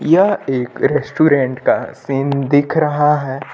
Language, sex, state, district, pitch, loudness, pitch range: Hindi, male, Uttar Pradesh, Lucknow, 140 Hz, -16 LUFS, 135-150 Hz